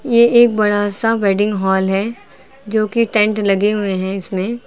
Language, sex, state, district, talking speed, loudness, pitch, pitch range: Hindi, female, Uttar Pradesh, Lucknow, 180 wpm, -15 LUFS, 210 Hz, 195-230 Hz